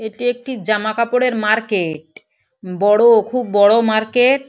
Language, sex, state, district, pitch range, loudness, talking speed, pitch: Bengali, female, West Bengal, Paschim Medinipur, 210-245 Hz, -16 LUFS, 135 wpm, 220 Hz